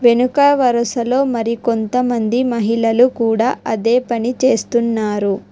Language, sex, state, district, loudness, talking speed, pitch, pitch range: Telugu, female, Telangana, Hyderabad, -16 LUFS, 100 wpm, 235 Hz, 225-250 Hz